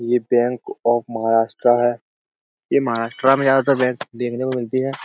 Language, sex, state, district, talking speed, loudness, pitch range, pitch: Hindi, male, Uttar Pradesh, Budaun, 165 wpm, -19 LUFS, 120-130 Hz, 120 Hz